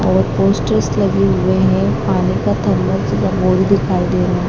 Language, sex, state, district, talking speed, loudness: Hindi, female, Madhya Pradesh, Dhar, 145 wpm, -15 LUFS